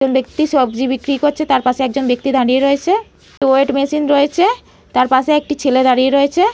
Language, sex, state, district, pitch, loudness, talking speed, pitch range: Bengali, female, West Bengal, Malda, 275 Hz, -15 LUFS, 185 wpm, 260-295 Hz